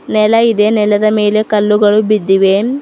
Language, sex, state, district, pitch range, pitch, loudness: Kannada, female, Karnataka, Bidar, 210-215 Hz, 215 Hz, -11 LUFS